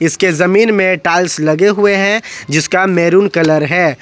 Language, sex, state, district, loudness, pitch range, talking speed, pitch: Hindi, male, Jharkhand, Ranchi, -12 LUFS, 165-195 Hz, 165 wpm, 180 Hz